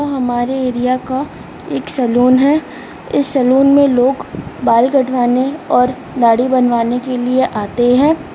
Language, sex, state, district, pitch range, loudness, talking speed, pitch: Hindi, female, Chhattisgarh, Rajnandgaon, 245-270 Hz, -14 LUFS, 135 wpm, 255 Hz